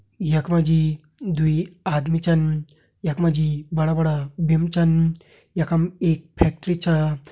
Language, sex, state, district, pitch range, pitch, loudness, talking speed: Hindi, male, Uttarakhand, Uttarkashi, 155-170 Hz, 160 Hz, -22 LUFS, 130 wpm